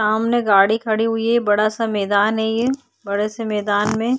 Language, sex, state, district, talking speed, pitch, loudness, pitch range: Hindi, female, Maharashtra, Chandrapur, 215 wpm, 220 Hz, -19 LUFS, 210-230 Hz